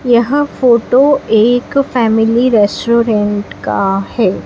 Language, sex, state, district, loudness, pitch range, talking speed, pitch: Hindi, female, Madhya Pradesh, Dhar, -12 LUFS, 220-255 Hz, 80 wpm, 235 Hz